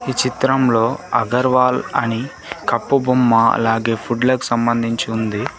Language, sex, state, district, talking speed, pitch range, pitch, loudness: Telugu, male, Telangana, Komaram Bheem, 120 wpm, 115-130 Hz, 120 Hz, -17 LUFS